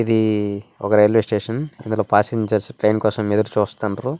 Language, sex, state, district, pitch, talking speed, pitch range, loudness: Telugu, male, Andhra Pradesh, Srikakulam, 110 Hz, 130 wpm, 105-115 Hz, -20 LUFS